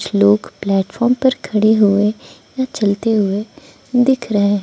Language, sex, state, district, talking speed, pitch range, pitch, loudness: Hindi, female, Arunachal Pradesh, Lower Dibang Valley, 140 wpm, 200-250 Hz, 215 Hz, -16 LUFS